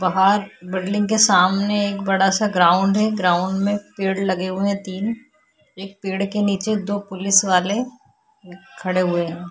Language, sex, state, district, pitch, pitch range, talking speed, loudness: Hindi, female, Chhattisgarh, Korba, 195 Hz, 185-205 Hz, 165 wpm, -19 LUFS